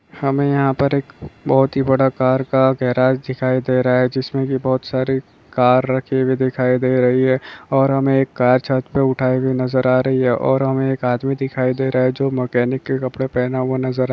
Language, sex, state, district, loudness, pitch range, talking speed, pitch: Hindi, male, Maharashtra, Solapur, -18 LUFS, 130-135 Hz, 225 wpm, 130 Hz